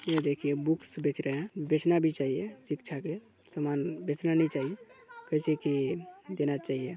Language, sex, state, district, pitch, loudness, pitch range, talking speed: Hindi, male, Chhattisgarh, Balrampur, 155 Hz, -31 LUFS, 145-170 Hz, 170 wpm